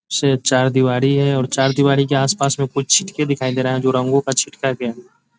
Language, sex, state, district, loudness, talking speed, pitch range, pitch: Hindi, male, Bihar, East Champaran, -17 LUFS, 255 wpm, 130-140 Hz, 135 Hz